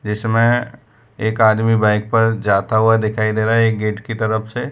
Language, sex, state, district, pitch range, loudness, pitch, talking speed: Hindi, male, Gujarat, Valsad, 110-115 Hz, -16 LUFS, 110 Hz, 215 wpm